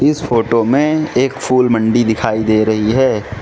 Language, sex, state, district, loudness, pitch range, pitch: Hindi, male, Mizoram, Aizawl, -14 LUFS, 110-130 Hz, 115 Hz